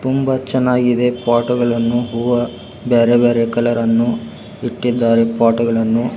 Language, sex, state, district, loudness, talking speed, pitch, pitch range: Kannada, male, Karnataka, Belgaum, -16 LUFS, 95 wpm, 120 Hz, 115-120 Hz